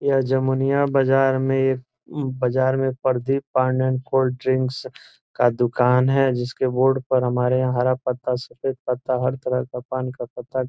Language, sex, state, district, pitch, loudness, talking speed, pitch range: Hindi, male, Bihar, Gopalganj, 130 Hz, -21 LUFS, 175 wpm, 125-135 Hz